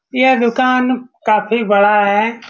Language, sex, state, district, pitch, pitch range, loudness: Hindi, male, Bihar, Saran, 230 Hz, 210-255 Hz, -14 LUFS